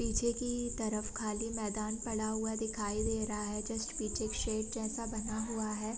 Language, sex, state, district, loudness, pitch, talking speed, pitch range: Hindi, female, Bihar, Sitamarhi, -36 LUFS, 220 Hz, 180 wpm, 215-225 Hz